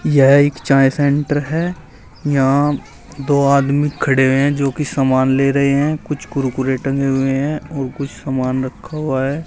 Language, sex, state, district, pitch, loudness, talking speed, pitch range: Hindi, male, Uttar Pradesh, Saharanpur, 140 Hz, -16 LUFS, 175 wpm, 135-145 Hz